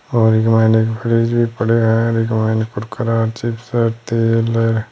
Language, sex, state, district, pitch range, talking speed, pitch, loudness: Hindi, male, Rajasthan, Churu, 110-115 Hz, 110 wpm, 115 Hz, -16 LUFS